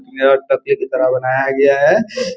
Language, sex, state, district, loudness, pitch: Hindi, male, Bihar, Gopalganj, -14 LUFS, 140 Hz